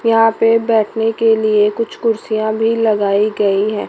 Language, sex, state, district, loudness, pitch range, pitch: Hindi, female, Chandigarh, Chandigarh, -15 LUFS, 210-225 Hz, 220 Hz